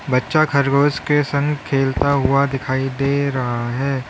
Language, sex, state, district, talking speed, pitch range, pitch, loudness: Hindi, male, Uttar Pradesh, Lalitpur, 145 wpm, 135-140 Hz, 140 Hz, -18 LUFS